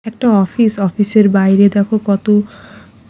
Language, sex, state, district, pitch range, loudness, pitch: Bengali, female, Odisha, Khordha, 200-215 Hz, -13 LUFS, 205 Hz